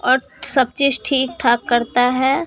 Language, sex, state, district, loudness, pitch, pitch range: Hindi, male, Bihar, Katihar, -17 LUFS, 260 Hz, 245-275 Hz